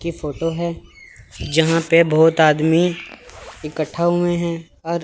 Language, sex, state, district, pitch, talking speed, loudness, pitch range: Hindi, male, Chandigarh, Chandigarh, 165 Hz, 130 wpm, -18 LUFS, 160-170 Hz